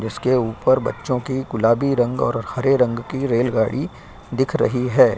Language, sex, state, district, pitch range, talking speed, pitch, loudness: Hindi, male, Uttar Pradesh, Jyotiba Phule Nagar, 115-130 Hz, 185 wpm, 125 Hz, -20 LUFS